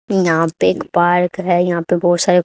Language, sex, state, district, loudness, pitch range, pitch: Hindi, female, Haryana, Charkhi Dadri, -15 LUFS, 170-180 Hz, 175 Hz